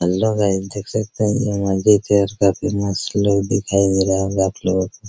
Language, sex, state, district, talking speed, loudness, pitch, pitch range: Hindi, male, Bihar, Araria, 190 wpm, -18 LUFS, 100 Hz, 95-105 Hz